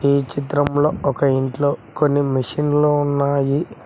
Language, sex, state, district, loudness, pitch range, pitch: Telugu, male, Telangana, Mahabubabad, -19 LUFS, 140-145 Hz, 145 Hz